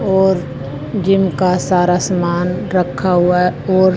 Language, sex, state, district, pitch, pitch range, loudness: Hindi, female, Haryana, Jhajjar, 180 Hz, 175-190 Hz, -15 LUFS